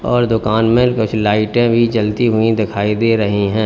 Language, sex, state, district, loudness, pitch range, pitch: Hindi, male, Uttar Pradesh, Lalitpur, -15 LUFS, 105-115 Hz, 110 Hz